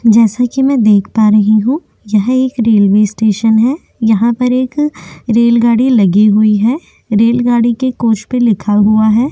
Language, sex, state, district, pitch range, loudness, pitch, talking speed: Hindi, female, Chhattisgarh, Korba, 215-250 Hz, -11 LUFS, 230 Hz, 165 wpm